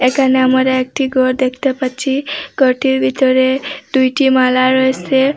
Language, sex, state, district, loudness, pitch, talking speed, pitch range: Bengali, female, Assam, Hailakandi, -14 LUFS, 260 Hz, 125 wpm, 255-270 Hz